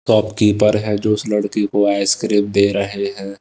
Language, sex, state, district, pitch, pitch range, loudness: Hindi, male, Himachal Pradesh, Shimla, 105 Hz, 100-105 Hz, -17 LUFS